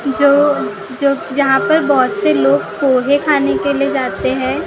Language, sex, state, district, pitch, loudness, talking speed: Hindi, female, Maharashtra, Gondia, 265 Hz, -14 LUFS, 165 wpm